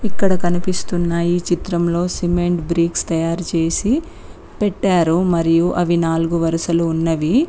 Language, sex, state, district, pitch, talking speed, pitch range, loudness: Telugu, female, Telangana, Mahabubabad, 175 Hz, 110 wpm, 165-180 Hz, -18 LUFS